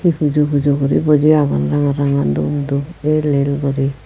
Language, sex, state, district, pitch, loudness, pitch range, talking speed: Chakma, female, Tripura, Unakoti, 145 Hz, -16 LUFS, 140-150 Hz, 190 wpm